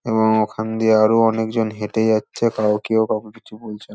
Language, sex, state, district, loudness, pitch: Bengali, male, West Bengal, Dakshin Dinajpur, -18 LUFS, 110 Hz